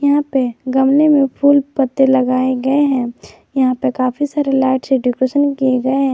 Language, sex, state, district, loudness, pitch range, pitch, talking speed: Hindi, female, Jharkhand, Garhwa, -15 LUFS, 255-280 Hz, 265 Hz, 185 wpm